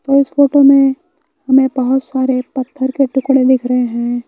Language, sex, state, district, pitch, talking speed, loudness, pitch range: Hindi, male, Bihar, West Champaran, 265 Hz, 170 wpm, -13 LUFS, 260-275 Hz